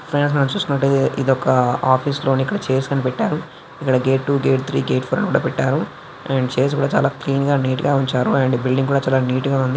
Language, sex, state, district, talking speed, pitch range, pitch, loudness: Telugu, male, Andhra Pradesh, Srikakulam, 210 wpm, 130-140 Hz, 135 Hz, -18 LUFS